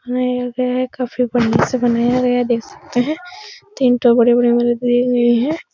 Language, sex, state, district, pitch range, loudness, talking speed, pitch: Hindi, female, Uttar Pradesh, Etah, 240-255 Hz, -16 LUFS, 165 wpm, 245 Hz